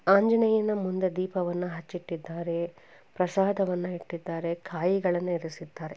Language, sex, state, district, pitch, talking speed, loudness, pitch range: Kannada, female, Karnataka, Chamarajanagar, 180 Hz, 80 wpm, -29 LUFS, 170-190 Hz